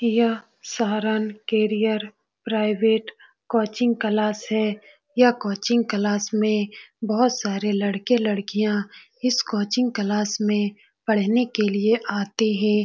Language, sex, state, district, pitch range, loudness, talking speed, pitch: Hindi, female, Bihar, Saran, 210-230 Hz, -23 LUFS, 110 wpm, 215 Hz